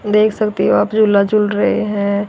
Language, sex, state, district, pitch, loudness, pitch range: Hindi, female, Haryana, Rohtak, 210 Hz, -15 LUFS, 205-215 Hz